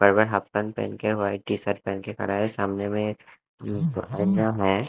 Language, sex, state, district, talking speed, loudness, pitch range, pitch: Hindi, male, Punjab, Kapurthala, 170 wpm, -26 LUFS, 100-105 Hz, 100 Hz